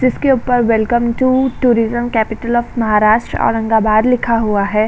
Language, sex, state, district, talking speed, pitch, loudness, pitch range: Hindi, female, Uttar Pradesh, Jalaun, 145 wpm, 235 Hz, -14 LUFS, 220-245 Hz